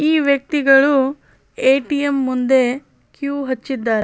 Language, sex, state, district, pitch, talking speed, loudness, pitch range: Kannada, female, Karnataka, Bellary, 270 Hz, 90 wpm, -17 LUFS, 260-285 Hz